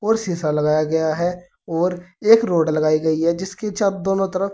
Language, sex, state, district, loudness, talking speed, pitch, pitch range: Hindi, male, Uttar Pradesh, Saharanpur, -19 LUFS, 185 wpm, 180 Hz, 160-195 Hz